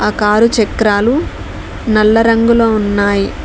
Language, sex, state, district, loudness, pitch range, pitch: Telugu, female, Telangana, Mahabubabad, -12 LUFS, 210-230 Hz, 220 Hz